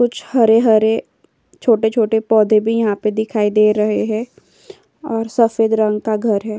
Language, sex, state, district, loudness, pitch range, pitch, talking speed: Hindi, female, Uttar Pradesh, Jyotiba Phule Nagar, -16 LUFS, 215-230 Hz, 220 Hz, 155 wpm